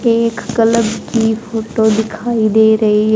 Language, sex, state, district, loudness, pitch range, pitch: Hindi, male, Haryana, Jhajjar, -14 LUFS, 220-230 Hz, 220 Hz